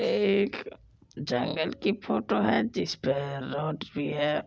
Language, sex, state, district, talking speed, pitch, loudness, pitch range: Maithili, male, Bihar, Supaul, 160 wpm, 150 Hz, -29 LUFS, 140-200 Hz